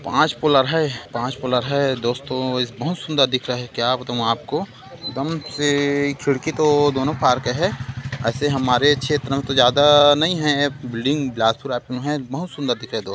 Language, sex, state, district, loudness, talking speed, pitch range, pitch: Hindi, male, Chhattisgarh, Korba, -20 LUFS, 180 wpm, 125-145 Hz, 135 Hz